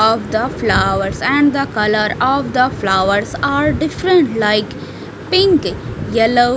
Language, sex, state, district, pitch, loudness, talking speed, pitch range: English, female, Punjab, Fazilka, 250 Hz, -15 LUFS, 135 wpm, 215-285 Hz